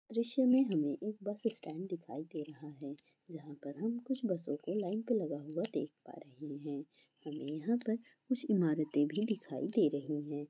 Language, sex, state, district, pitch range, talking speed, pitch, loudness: Hindi, female, Bihar, Kishanganj, 150-220 Hz, 195 wpm, 160 Hz, -37 LUFS